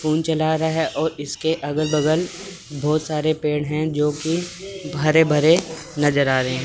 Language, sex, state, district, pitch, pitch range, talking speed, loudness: Hindi, male, Chandigarh, Chandigarh, 155 Hz, 150-160 Hz, 180 wpm, -20 LUFS